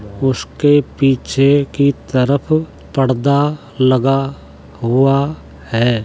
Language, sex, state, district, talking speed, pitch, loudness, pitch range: Hindi, male, Uttar Pradesh, Jalaun, 80 wpm, 135 Hz, -15 LUFS, 130-140 Hz